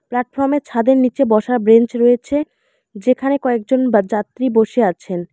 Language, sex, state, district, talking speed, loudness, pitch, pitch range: Bengali, female, West Bengal, Alipurduar, 135 wpm, -16 LUFS, 245 Hz, 225-270 Hz